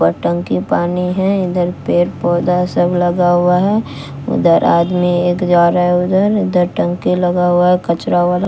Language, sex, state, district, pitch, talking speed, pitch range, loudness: Hindi, female, Bihar, West Champaran, 175 Hz, 165 wpm, 175-180 Hz, -14 LUFS